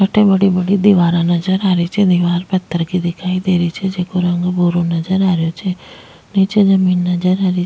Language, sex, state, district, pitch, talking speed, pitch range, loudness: Rajasthani, female, Rajasthan, Nagaur, 180 Hz, 220 wpm, 175-190 Hz, -15 LUFS